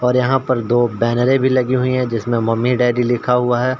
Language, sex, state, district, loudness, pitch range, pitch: Hindi, male, Bihar, Samastipur, -16 LUFS, 120-130 Hz, 125 Hz